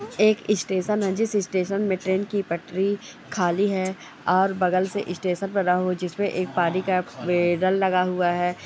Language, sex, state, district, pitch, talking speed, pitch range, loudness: Hindi, female, Chhattisgarh, Kabirdham, 185 Hz, 175 wpm, 180-200 Hz, -24 LUFS